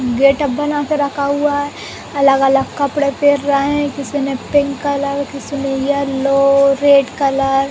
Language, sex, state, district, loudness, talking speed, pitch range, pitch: Hindi, female, Uttar Pradesh, Jalaun, -15 LUFS, 155 wpm, 275-285 Hz, 280 Hz